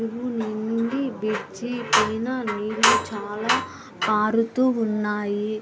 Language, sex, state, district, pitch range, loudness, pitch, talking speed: Telugu, female, Andhra Pradesh, Anantapur, 215-235 Hz, -23 LUFS, 225 Hz, 95 wpm